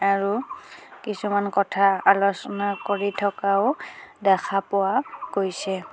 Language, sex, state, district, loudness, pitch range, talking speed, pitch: Assamese, female, Assam, Kamrup Metropolitan, -23 LUFS, 195-205 Hz, 90 wpm, 200 Hz